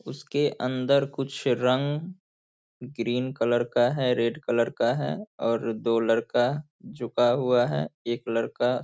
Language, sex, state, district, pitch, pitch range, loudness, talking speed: Hindi, male, Bihar, Saharsa, 125 Hz, 115-140 Hz, -26 LUFS, 140 wpm